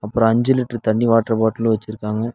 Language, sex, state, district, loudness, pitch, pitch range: Tamil, male, Tamil Nadu, Nilgiris, -18 LUFS, 115 Hz, 110-120 Hz